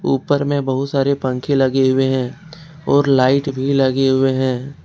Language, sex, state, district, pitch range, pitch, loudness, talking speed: Hindi, male, Jharkhand, Ranchi, 130-140 Hz, 135 Hz, -17 LUFS, 175 wpm